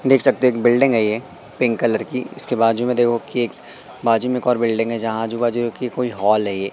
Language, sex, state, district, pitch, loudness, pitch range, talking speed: Hindi, male, Madhya Pradesh, Katni, 120 Hz, -19 LUFS, 115-125 Hz, 265 wpm